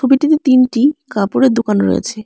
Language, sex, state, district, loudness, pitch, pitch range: Bengali, female, West Bengal, Alipurduar, -13 LUFS, 255 Hz, 225-275 Hz